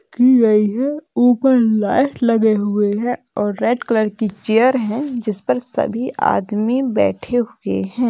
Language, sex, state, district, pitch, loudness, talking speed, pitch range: Hindi, female, Bihar, Jamui, 230 Hz, -17 LUFS, 150 wpm, 210-250 Hz